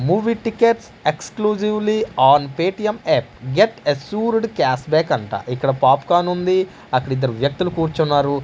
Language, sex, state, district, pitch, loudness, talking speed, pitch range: Telugu, male, Andhra Pradesh, Manyam, 175 Hz, -19 LUFS, 120 wpm, 140-215 Hz